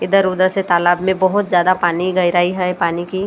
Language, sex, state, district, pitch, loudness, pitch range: Hindi, female, Maharashtra, Gondia, 185 Hz, -16 LUFS, 175-190 Hz